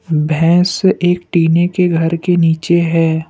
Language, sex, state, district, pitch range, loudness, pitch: Hindi, male, Assam, Kamrup Metropolitan, 165-175 Hz, -13 LUFS, 170 Hz